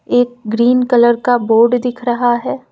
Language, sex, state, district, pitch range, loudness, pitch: Hindi, female, Uttar Pradesh, Lucknow, 235-245 Hz, -14 LUFS, 240 Hz